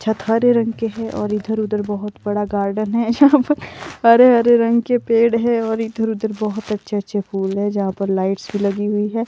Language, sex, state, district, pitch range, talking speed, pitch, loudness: Hindi, female, Himachal Pradesh, Shimla, 205-230 Hz, 205 wpm, 220 Hz, -18 LUFS